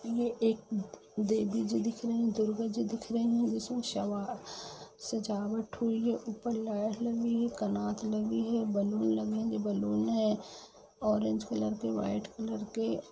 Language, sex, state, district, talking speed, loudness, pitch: Hindi, female, Bihar, Gopalganj, 155 wpm, -33 LUFS, 220 Hz